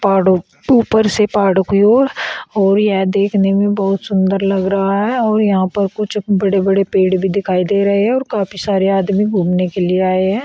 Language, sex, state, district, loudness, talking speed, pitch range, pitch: Hindi, female, Uttar Pradesh, Shamli, -14 LUFS, 205 wpm, 190-205 Hz, 195 Hz